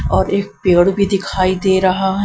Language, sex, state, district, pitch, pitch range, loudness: Hindi, female, Punjab, Kapurthala, 190 Hz, 180-195 Hz, -15 LUFS